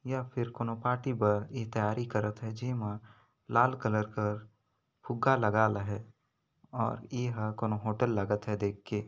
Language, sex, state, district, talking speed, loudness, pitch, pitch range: Sadri, male, Chhattisgarh, Jashpur, 165 wpm, -32 LUFS, 110 Hz, 105-125 Hz